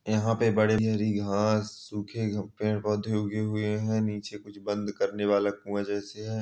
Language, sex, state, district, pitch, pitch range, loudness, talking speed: Hindi, male, Bihar, Supaul, 105 Hz, 105-110 Hz, -29 LUFS, 160 wpm